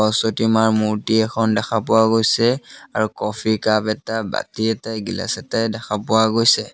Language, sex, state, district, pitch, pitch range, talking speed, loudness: Assamese, male, Assam, Sonitpur, 110 Hz, 110-115 Hz, 160 wpm, -19 LUFS